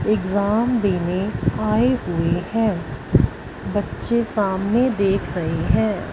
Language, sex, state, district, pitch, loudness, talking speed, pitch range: Hindi, female, Punjab, Fazilka, 200 Hz, -21 LUFS, 100 wpm, 175-220 Hz